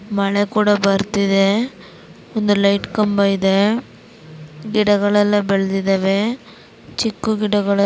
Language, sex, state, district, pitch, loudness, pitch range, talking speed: Kannada, female, Karnataka, Dharwad, 205 Hz, -17 LUFS, 195-210 Hz, 70 wpm